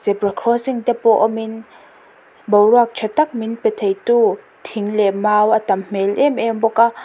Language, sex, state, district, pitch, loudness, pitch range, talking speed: Mizo, female, Mizoram, Aizawl, 225 Hz, -17 LUFS, 210-235 Hz, 180 wpm